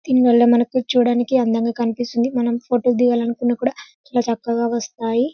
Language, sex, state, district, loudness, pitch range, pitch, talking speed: Telugu, female, Telangana, Karimnagar, -19 LUFS, 235-245 Hz, 240 Hz, 145 wpm